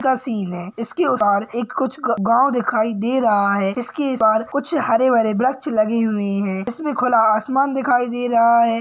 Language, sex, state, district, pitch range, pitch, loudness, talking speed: Hindi, male, Uttar Pradesh, Gorakhpur, 215-260 Hz, 235 Hz, -18 LUFS, 205 wpm